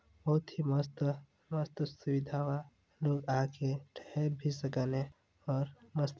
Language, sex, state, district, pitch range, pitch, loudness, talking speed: Chhattisgarhi, male, Chhattisgarh, Balrampur, 135-150 Hz, 145 Hz, -36 LUFS, 145 wpm